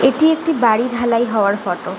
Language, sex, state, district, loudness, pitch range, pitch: Bengali, female, West Bengal, Jhargram, -16 LUFS, 205-265 Hz, 235 Hz